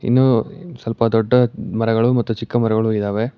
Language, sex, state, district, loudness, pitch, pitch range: Kannada, male, Karnataka, Bangalore, -18 LUFS, 115 Hz, 110-125 Hz